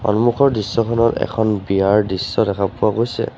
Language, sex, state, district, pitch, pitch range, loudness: Assamese, male, Assam, Sonitpur, 110 Hz, 100-115 Hz, -18 LUFS